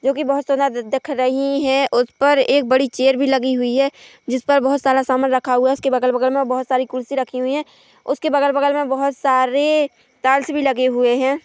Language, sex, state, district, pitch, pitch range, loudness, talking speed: Hindi, female, Chhattisgarh, Korba, 270 Hz, 255-280 Hz, -18 LUFS, 225 wpm